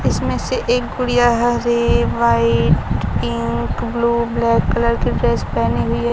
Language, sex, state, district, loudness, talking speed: Hindi, female, Bihar, Kaimur, -17 LUFS, 155 wpm